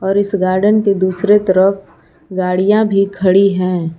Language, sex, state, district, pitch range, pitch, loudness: Hindi, female, Jharkhand, Palamu, 185-200 Hz, 195 Hz, -13 LUFS